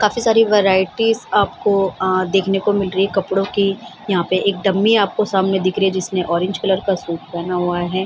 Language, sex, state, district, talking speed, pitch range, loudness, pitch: Hindi, female, Bihar, Samastipur, 200 wpm, 185-205 Hz, -17 LUFS, 195 Hz